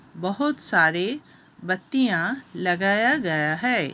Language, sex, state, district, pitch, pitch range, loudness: Hindi, female, Uttar Pradesh, Hamirpur, 190 Hz, 175-250 Hz, -22 LUFS